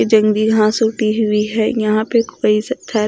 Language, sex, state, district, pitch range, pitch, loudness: Hindi, female, Odisha, Khordha, 215-225 Hz, 220 Hz, -16 LUFS